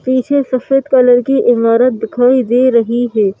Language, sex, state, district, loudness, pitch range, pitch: Hindi, female, Madhya Pradesh, Bhopal, -12 LUFS, 235-260 Hz, 250 Hz